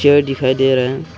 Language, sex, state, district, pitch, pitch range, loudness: Hindi, male, Arunachal Pradesh, Longding, 135 Hz, 130-145 Hz, -15 LUFS